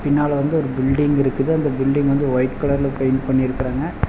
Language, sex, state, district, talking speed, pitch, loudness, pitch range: Tamil, male, Tamil Nadu, Chennai, 190 wpm, 140 Hz, -19 LUFS, 130-145 Hz